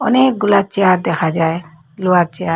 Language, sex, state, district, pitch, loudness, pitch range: Bengali, female, Assam, Hailakandi, 180 Hz, -15 LUFS, 165-200 Hz